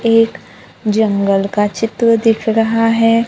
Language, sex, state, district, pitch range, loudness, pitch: Hindi, female, Maharashtra, Gondia, 210-230 Hz, -14 LUFS, 225 Hz